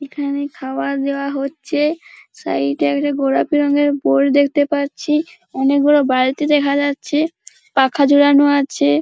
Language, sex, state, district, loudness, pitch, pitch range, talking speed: Bengali, female, West Bengal, Paschim Medinipur, -16 LUFS, 285 Hz, 275-295 Hz, 140 wpm